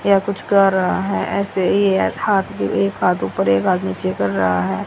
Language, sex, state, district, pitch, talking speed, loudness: Hindi, female, Haryana, Rohtak, 140 Hz, 220 wpm, -18 LUFS